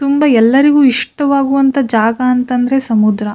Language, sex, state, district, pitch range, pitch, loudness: Kannada, female, Karnataka, Bijapur, 230-275 Hz, 260 Hz, -11 LUFS